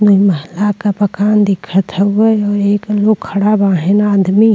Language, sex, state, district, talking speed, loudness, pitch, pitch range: Bhojpuri, female, Uttar Pradesh, Deoria, 160 wpm, -13 LUFS, 205 Hz, 195-210 Hz